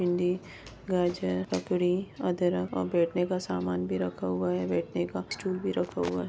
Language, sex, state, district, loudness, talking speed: Hindi, female, Maharashtra, Nagpur, -30 LUFS, 180 wpm